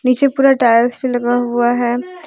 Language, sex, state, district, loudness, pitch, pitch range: Hindi, female, Jharkhand, Deoghar, -14 LUFS, 245 Hz, 240-270 Hz